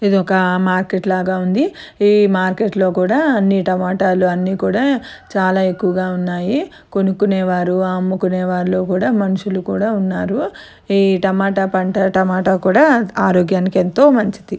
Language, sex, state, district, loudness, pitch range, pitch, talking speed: Telugu, female, Andhra Pradesh, Anantapur, -16 LUFS, 185-205 Hz, 190 Hz, 125 wpm